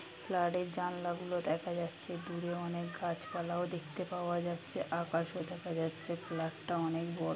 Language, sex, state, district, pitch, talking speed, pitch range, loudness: Bengali, female, West Bengal, Kolkata, 175 Hz, 155 wpm, 165-175 Hz, -38 LUFS